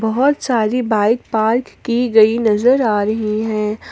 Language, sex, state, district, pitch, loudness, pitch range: Hindi, female, Jharkhand, Palamu, 220 Hz, -16 LUFS, 215-245 Hz